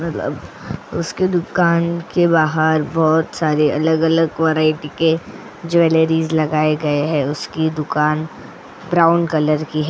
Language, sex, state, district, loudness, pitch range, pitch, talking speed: Hindi, female, Goa, North and South Goa, -17 LUFS, 155-165 Hz, 160 Hz, 135 wpm